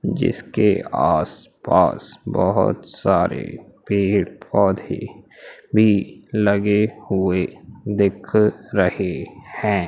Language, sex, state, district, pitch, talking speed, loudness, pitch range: Hindi, male, Madhya Pradesh, Umaria, 100 Hz, 80 wpm, -20 LUFS, 100-105 Hz